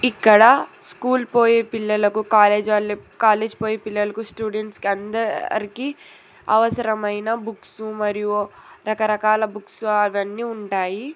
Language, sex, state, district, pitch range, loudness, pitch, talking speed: Telugu, female, Telangana, Hyderabad, 210-230 Hz, -20 LUFS, 215 Hz, 95 wpm